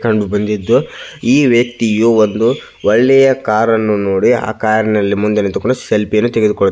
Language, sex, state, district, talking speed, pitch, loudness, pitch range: Kannada, male, Karnataka, Belgaum, 150 wpm, 110 Hz, -13 LUFS, 105-115 Hz